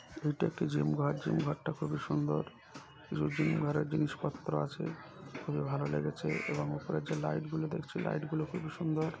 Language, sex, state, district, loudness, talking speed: Bengali, male, West Bengal, North 24 Parganas, -35 LUFS, 170 wpm